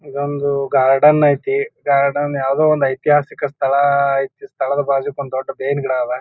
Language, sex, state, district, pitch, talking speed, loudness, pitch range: Kannada, male, Karnataka, Bijapur, 140 Hz, 155 wpm, -17 LUFS, 135-145 Hz